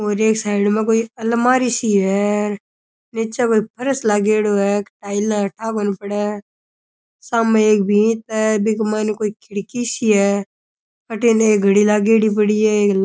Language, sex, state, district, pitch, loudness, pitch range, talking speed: Rajasthani, male, Rajasthan, Churu, 215 Hz, -17 LUFS, 205-225 Hz, 170 wpm